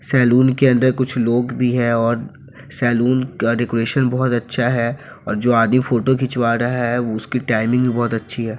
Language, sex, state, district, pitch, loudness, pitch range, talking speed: Hindi, male, Bihar, Sitamarhi, 120 Hz, -18 LUFS, 115-130 Hz, 190 wpm